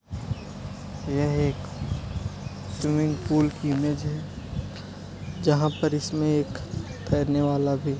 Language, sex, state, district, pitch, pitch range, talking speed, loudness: Hindi, male, Uttar Pradesh, Deoria, 145 Hz, 140-150 Hz, 105 wpm, -27 LUFS